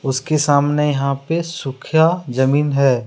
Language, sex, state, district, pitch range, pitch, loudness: Hindi, male, Jharkhand, Deoghar, 135-160 Hz, 145 Hz, -17 LUFS